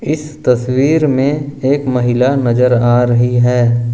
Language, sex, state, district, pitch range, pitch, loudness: Hindi, male, Jharkhand, Ranchi, 120-140 Hz, 125 Hz, -13 LUFS